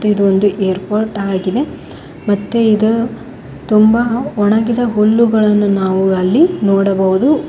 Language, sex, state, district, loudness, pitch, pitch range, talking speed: Kannada, female, Karnataka, Koppal, -13 LUFS, 210 Hz, 195-230 Hz, 90 wpm